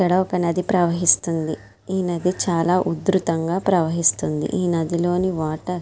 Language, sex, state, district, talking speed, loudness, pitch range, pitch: Telugu, female, Andhra Pradesh, Srikakulam, 135 wpm, -20 LUFS, 165-180 Hz, 175 Hz